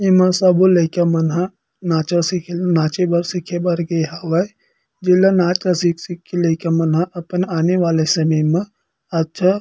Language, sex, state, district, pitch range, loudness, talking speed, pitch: Chhattisgarhi, male, Chhattisgarh, Kabirdham, 165-180 Hz, -17 LUFS, 175 wpm, 175 Hz